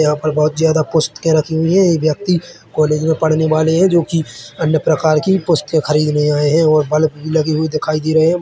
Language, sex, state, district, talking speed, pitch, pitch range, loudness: Hindi, male, Chhattisgarh, Bilaspur, 235 wpm, 155 Hz, 155-160 Hz, -15 LUFS